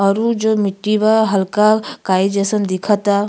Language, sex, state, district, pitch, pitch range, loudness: Bhojpuri, female, Uttar Pradesh, Gorakhpur, 205 Hz, 195-215 Hz, -16 LUFS